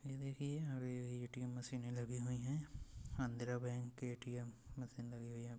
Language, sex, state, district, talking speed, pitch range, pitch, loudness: Hindi, male, Uttar Pradesh, Etah, 170 wpm, 120-130 Hz, 125 Hz, -46 LUFS